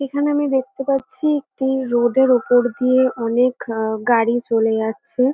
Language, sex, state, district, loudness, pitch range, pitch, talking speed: Bengali, female, West Bengal, North 24 Parganas, -18 LUFS, 235-265 Hz, 250 Hz, 160 wpm